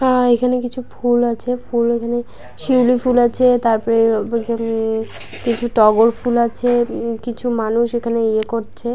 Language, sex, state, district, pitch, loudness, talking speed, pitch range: Bengali, female, West Bengal, Purulia, 235 Hz, -17 LUFS, 155 wpm, 230-245 Hz